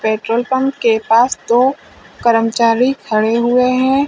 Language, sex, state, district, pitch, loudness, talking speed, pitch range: Hindi, female, Uttar Pradesh, Lalitpur, 235 Hz, -14 LUFS, 135 wpm, 225-260 Hz